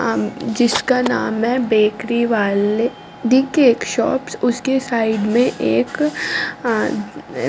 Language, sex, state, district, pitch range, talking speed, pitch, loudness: Hindi, female, Delhi, New Delhi, 215-250 Hz, 95 wpm, 235 Hz, -18 LUFS